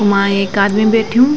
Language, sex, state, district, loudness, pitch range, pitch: Garhwali, female, Uttarakhand, Tehri Garhwal, -13 LUFS, 200-225 Hz, 205 Hz